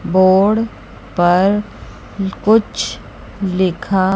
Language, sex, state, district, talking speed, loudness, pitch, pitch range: Hindi, female, Chandigarh, Chandigarh, 60 wpm, -16 LUFS, 190 Hz, 185-205 Hz